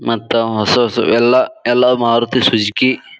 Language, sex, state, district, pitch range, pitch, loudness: Kannada, male, Karnataka, Bijapur, 115-125 Hz, 120 Hz, -14 LUFS